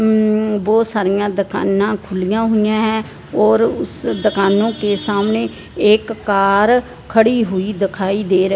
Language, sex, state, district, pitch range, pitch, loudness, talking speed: Hindi, female, Punjab, Fazilka, 195-220 Hz, 210 Hz, -16 LUFS, 135 wpm